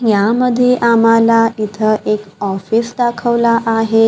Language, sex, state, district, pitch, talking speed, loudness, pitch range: Marathi, female, Maharashtra, Gondia, 230 Hz, 105 wpm, -14 LUFS, 215-235 Hz